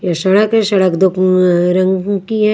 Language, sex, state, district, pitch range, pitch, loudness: Hindi, female, Haryana, Charkhi Dadri, 185-205 Hz, 190 Hz, -13 LUFS